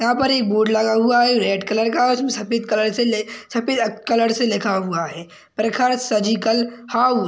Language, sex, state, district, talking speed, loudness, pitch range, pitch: Hindi, male, Chhattisgarh, Sarguja, 190 wpm, -19 LUFS, 215-240 Hz, 225 Hz